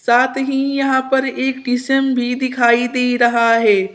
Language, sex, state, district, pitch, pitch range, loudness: Hindi, female, Uttar Pradesh, Saharanpur, 250 Hz, 240-265 Hz, -16 LUFS